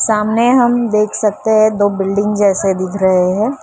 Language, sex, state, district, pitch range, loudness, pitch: Hindi, female, Maharashtra, Mumbai Suburban, 195-220 Hz, -13 LUFS, 210 Hz